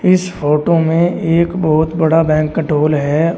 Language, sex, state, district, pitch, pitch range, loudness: Hindi, male, Uttar Pradesh, Shamli, 160 Hz, 155-170 Hz, -14 LUFS